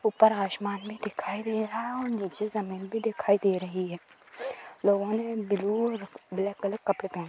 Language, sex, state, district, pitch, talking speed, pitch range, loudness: Hindi, female, Bihar, Purnia, 205 Hz, 195 wpm, 195-220 Hz, -30 LUFS